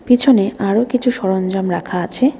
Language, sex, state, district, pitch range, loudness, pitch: Bengali, female, West Bengal, Alipurduar, 190-250 Hz, -16 LUFS, 210 Hz